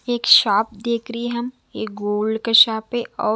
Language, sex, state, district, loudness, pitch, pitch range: Hindi, female, Chhattisgarh, Raipur, -18 LUFS, 225 Hz, 215-240 Hz